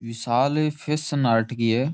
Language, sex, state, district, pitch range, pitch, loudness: Rajasthani, male, Rajasthan, Churu, 115-150 Hz, 130 Hz, -23 LUFS